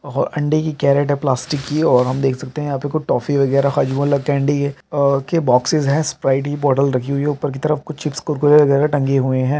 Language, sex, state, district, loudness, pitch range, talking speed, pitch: Hindi, male, Uttar Pradesh, Jalaun, -17 LUFS, 135-150 Hz, 255 wpm, 140 Hz